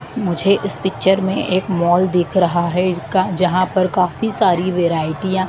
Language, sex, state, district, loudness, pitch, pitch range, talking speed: Hindi, female, Madhya Pradesh, Dhar, -17 LUFS, 185 Hz, 175-190 Hz, 175 wpm